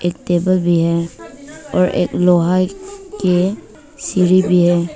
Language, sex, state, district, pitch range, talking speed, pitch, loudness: Hindi, female, Arunachal Pradesh, Papum Pare, 175-205 Hz, 135 wpm, 180 Hz, -16 LUFS